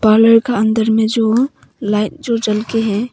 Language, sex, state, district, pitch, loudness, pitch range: Hindi, female, Arunachal Pradesh, Papum Pare, 225 Hz, -15 LUFS, 215-230 Hz